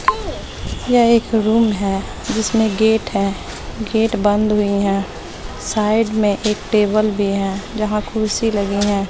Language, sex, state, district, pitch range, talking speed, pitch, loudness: Hindi, female, Bihar, West Champaran, 200-220 Hz, 140 wpm, 215 Hz, -18 LUFS